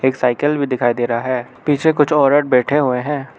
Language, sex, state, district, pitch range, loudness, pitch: Hindi, male, Arunachal Pradesh, Lower Dibang Valley, 125-145 Hz, -16 LUFS, 130 Hz